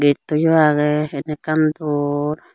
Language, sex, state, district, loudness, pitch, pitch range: Chakma, female, Tripura, Unakoti, -18 LUFS, 150 Hz, 145-155 Hz